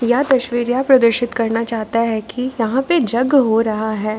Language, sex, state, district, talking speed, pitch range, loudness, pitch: Hindi, female, Jharkhand, Ranchi, 200 wpm, 225-255 Hz, -17 LUFS, 235 Hz